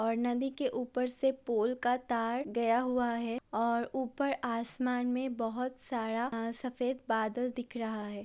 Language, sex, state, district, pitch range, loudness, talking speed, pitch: Hindi, female, Uttar Pradesh, Budaun, 230-255 Hz, -34 LUFS, 165 wpm, 245 Hz